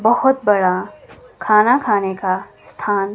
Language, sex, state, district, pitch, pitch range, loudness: Hindi, female, Himachal Pradesh, Shimla, 205 Hz, 190-240 Hz, -17 LUFS